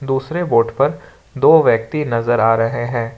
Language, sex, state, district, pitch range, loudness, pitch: Hindi, male, Jharkhand, Ranchi, 115-140 Hz, -16 LUFS, 120 Hz